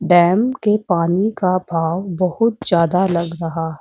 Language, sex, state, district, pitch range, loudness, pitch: Hindi, female, Uttar Pradesh, Muzaffarnagar, 170-200 Hz, -17 LUFS, 180 Hz